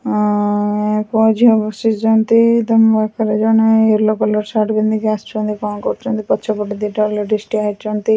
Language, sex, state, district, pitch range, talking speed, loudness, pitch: Odia, female, Odisha, Khordha, 210-220 Hz, 155 wpm, -15 LUFS, 215 Hz